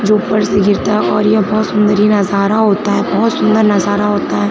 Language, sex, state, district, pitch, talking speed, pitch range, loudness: Hindi, female, Chhattisgarh, Sukma, 205 Hz, 210 wpm, 205-210 Hz, -13 LUFS